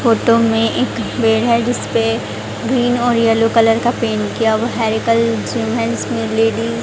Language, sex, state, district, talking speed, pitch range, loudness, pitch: Hindi, female, Haryana, Jhajjar, 140 wpm, 225-235 Hz, -16 LUFS, 230 Hz